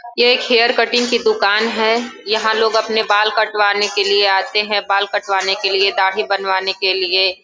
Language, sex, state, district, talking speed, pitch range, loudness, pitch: Hindi, female, Uttar Pradesh, Gorakhpur, 195 wpm, 195-220 Hz, -15 LUFS, 205 Hz